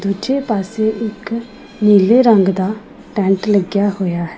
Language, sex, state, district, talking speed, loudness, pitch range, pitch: Punjabi, female, Punjab, Pathankot, 135 wpm, -15 LUFS, 195-225 Hz, 210 Hz